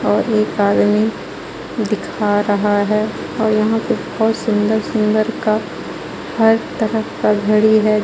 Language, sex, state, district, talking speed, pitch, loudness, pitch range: Hindi, female, Jharkhand, Ranchi, 135 wpm, 215 Hz, -17 LUFS, 210-220 Hz